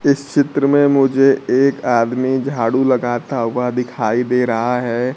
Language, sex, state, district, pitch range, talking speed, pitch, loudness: Hindi, male, Bihar, Kaimur, 120-135 Hz, 150 wpm, 125 Hz, -16 LUFS